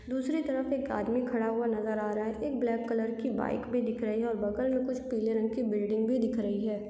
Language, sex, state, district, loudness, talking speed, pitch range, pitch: Hindi, female, Chhattisgarh, Raigarh, -31 LUFS, 270 wpm, 220-250 Hz, 230 Hz